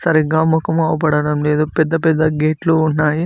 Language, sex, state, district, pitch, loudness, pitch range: Telugu, male, Telangana, Mahabubabad, 155 Hz, -16 LUFS, 150-160 Hz